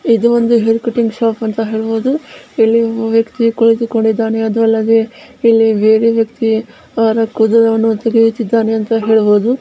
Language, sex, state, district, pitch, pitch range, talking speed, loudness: Kannada, female, Karnataka, Bellary, 225 Hz, 225-230 Hz, 130 wpm, -13 LUFS